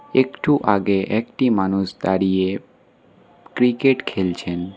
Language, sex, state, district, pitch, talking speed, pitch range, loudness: Bengali, male, West Bengal, Alipurduar, 100 Hz, 90 wpm, 95-125 Hz, -20 LUFS